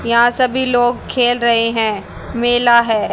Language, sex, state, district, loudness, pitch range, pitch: Hindi, female, Haryana, Charkhi Dadri, -14 LUFS, 230-245 Hz, 240 Hz